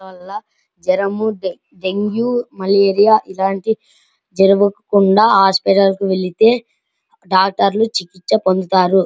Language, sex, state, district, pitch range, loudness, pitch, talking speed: Telugu, male, Andhra Pradesh, Anantapur, 190-215 Hz, -15 LUFS, 195 Hz, 95 wpm